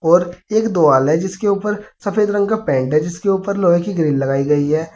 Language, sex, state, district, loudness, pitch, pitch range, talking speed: Hindi, male, Uttar Pradesh, Saharanpur, -17 LUFS, 175 Hz, 155-200 Hz, 230 wpm